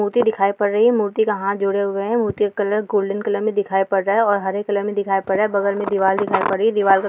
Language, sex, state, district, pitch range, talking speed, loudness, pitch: Hindi, female, Bihar, Jamui, 195-210 Hz, 340 wpm, -19 LUFS, 205 Hz